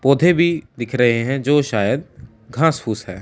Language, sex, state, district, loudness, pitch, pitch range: Hindi, male, Chandigarh, Chandigarh, -18 LUFS, 130 Hz, 115-145 Hz